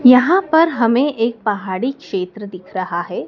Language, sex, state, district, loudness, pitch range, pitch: Hindi, female, Madhya Pradesh, Dhar, -17 LUFS, 190-275 Hz, 230 Hz